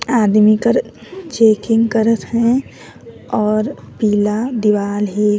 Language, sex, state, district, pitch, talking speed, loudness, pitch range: Sadri, female, Chhattisgarh, Jashpur, 215 Hz, 110 wpm, -15 LUFS, 205-230 Hz